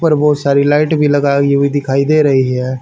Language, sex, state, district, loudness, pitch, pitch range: Hindi, male, Haryana, Rohtak, -12 LUFS, 140 Hz, 140-150 Hz